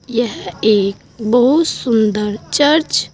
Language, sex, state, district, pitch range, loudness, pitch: Hindi, female, Uttar Pradesh, Saharanpur, 210-265 Hz, -15 LUFS, 230 Hz